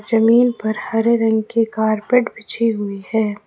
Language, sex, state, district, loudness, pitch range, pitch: Hindi, female, Jharkhand, Ranchi, -18 LUFS, 215-230 Hz, 225 Hz